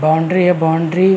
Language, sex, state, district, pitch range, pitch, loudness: Hindi, male, Uttar Pradesh, Varanasi, 160-185 Hz, 165 Hz, -14 LUFS